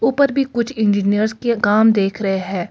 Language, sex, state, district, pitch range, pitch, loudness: Hindi, female, Delhi, New Delhi, 200-235 Hz, 215 Hz, -17 LUFS